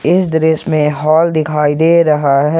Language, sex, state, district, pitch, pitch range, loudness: Hindi, male, Jharkhand, Ranchi, 155 Hz, 150-165 Hz, -12 LUFS